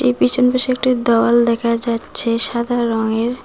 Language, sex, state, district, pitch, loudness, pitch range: Bengali, female, West Bengal, Cooch Behar, 235 Hz, -15 LUFS, 230-250 Hz